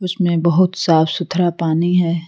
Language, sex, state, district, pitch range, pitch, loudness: Hindi, female, Uttar Pradesh, Lucknow, 170-180 Hz, 175 Hz, -16 LUFS